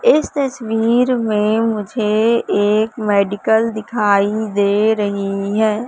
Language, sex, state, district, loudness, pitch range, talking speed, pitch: Hindi, female, Madhya Pradesh, Katni, -16 LUFS, 205-230 Hz, 100 wpm, 215 Hz